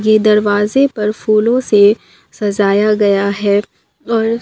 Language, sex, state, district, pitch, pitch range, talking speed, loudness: Hindi, female, Bihar, Katihar, 210 Hz, 205-220 Hz, 120 wpm, -13 LUFS